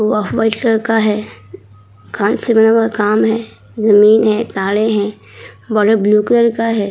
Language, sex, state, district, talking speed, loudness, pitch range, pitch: Hindi, female, Uttar Pradesh, Muzaffarnagar, 165 wpm, -13 LUFS, 210-225 Hz, 215 Hz